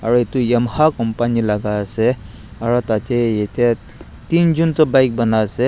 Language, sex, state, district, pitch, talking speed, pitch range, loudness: Nagamese, male, Nagaland, Dimapur, 120 Hz, 150 wpm, 110-130 Hz, -17 LUFS